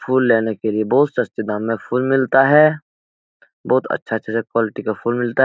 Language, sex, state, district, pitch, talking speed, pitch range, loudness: Hindi, male, Bihar, Jahanabad, 115 Hz, 200 wpm, 110-130 Hz, -18 LUFS